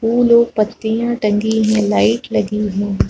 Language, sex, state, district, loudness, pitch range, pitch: Hindi, female, Chhattisgarh, Rajnandgaon, -16 LUFS, 210-235 Hz, 220 Hz